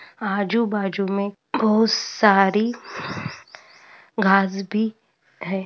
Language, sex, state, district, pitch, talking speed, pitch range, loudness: Hindi, female, Andhra Pradesh, Anantapur, 205 Hz, 65 wpm, 195-220 Hz, -21 LUFS